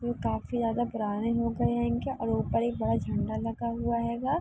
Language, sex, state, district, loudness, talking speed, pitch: Hindi, female, Uttar Pradesh, Varanasi, -30 LUFS, 205 wpm, 210 Hz